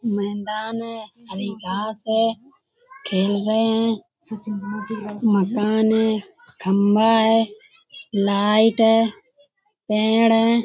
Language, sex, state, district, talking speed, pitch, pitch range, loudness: Hindi, female, Uttar Pradesh, Budaun, 90 wpm, 220 Hz, 210-230 Hz, -20 LUFS